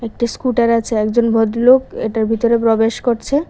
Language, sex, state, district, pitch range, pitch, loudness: Bengali, female, Tripura, West Tripura, 225-240 Hz, 230 Hz, -15 LUFS